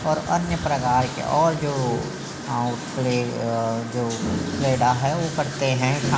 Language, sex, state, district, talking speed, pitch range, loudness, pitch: Chhattisgarhi, male, Chhattisgarh, Bilaspur, 105 wpm, 120-145 Hz, -23 LUFS, 130 Hz